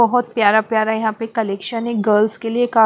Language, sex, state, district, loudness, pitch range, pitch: Hindi, female, Punjab, Pathankot, -18 LUFS, 215-230 Hz, 225 Hz